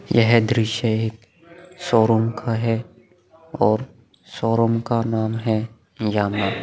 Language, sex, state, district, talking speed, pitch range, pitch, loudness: Hindi, male, Bihar, Vaishali, 120 wpm, 110-115 Hz, 115 Hz, -21 LUFS